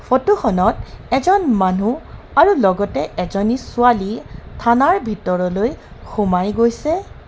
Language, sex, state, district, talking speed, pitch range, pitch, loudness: Assamese, female, Assam, Kamrup Metropolitan, 100 wpm, 195-255 Hz, 230 Hz, -17 LUFS